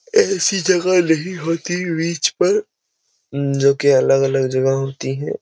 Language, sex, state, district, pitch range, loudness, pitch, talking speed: Hindi, male, Uttar Pradesh, Jyotiba Phule Nagar, 135-180 Hz, -17 LUFS, 160 Hz, 135 wpm